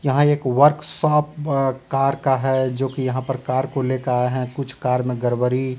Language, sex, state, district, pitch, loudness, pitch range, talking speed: Hindi, male, Bihar, Katihar, 130 Hz, -20 LUFS, 130-140 Hz, 230 wpm